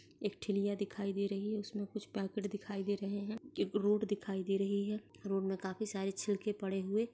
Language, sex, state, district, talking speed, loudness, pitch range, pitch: Hindi, female, Uttar Pradesh, Jyotiba Phule Nagar, 225 wpm, -38 LUFS, 195-210 Hz, 205 Hz